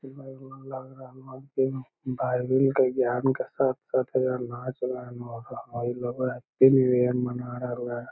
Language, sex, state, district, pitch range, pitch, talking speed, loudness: Magahi, male, Bihar, Lakhisarai, 125-130 Hz, 130 Hz, 80 wpm, -26 LUFS